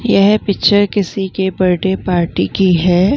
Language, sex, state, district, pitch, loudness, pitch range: Hindi, female, Bihar, Vaishali, 190 Hz, -14 LUFS, 180-200 Hz